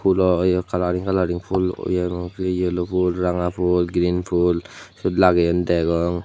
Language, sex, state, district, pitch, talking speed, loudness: Chakma, male, Tripura, Unakoti, 90 Hz, 145 wpm, -21 LUFS